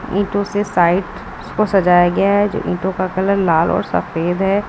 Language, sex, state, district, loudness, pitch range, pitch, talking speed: Hindi, female, Uttar Pradesh, Lucknow, -16 LUFS, 180-200 Hz, 190 Hz, 180 wpm